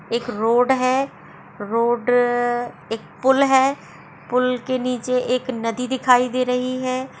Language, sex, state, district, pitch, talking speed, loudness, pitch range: Hindi, female, Bihar, Sitamarhi, 250 Hz, 135 wpm, -20 LUFS, 240-255 Hz